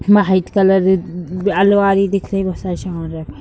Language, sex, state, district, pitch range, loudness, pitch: Hindi, female, Bihar, Sitamarhi, 180-195 Hz, -16 LUFS, 190 Hz